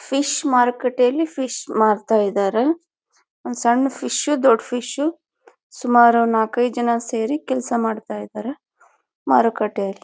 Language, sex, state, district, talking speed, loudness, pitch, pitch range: Kannada, female, Karnataka, Bijapur, 110 wpm, -19 LUFS, 245 Hz, 225-275 Hz